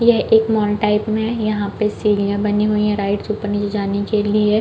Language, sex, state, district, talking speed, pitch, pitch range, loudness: Hindi, female, Chhattisgarh, Balrampur, 220 wpm, 210 Hz, 205-215 Hz, -18 LUFS